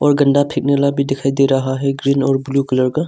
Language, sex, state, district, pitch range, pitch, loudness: Hindi, male, Arunachal Pradesh, Longding, 135-140 Hz, 140 Hz, -16 LUFS